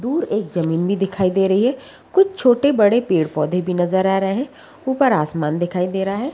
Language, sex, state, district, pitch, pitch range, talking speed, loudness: Hindi, female, Bihar, Sitamarhi, 195 Hz, 180-265 Hz, 210 wpm, -18 LUFS